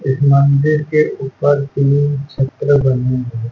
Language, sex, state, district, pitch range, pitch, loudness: Hindi, male, Haryana, Charkhi Dadri, 135-145 Hz, 140 Hz, -15 LUFS